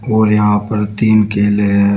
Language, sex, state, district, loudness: Hindi, male, Uttar Pradesh, Shamli, -13 LUFS